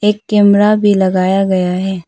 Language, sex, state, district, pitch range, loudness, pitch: Hindi, female, Arunachal Pradesh, Papum Pare, 185-210 Hz, -12 LUFS, 195 Hz